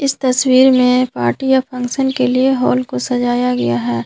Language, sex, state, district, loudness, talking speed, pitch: Hindi, female, Jharkhand, Garhwa, -14 LUFS, 190 wpm, 250 Hz